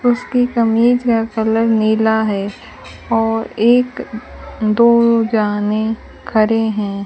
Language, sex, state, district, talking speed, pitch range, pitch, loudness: Hindi, female, Rajasthan, Bikaner, 100 wpm, 215-235 Hz, 225 Hz, -15 LUFS